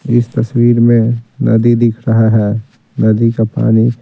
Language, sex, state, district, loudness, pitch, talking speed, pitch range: Hindi, male, Bihar, Patna, -12 LUFS, 115 Hz, 150 wpm, 110-120 Hz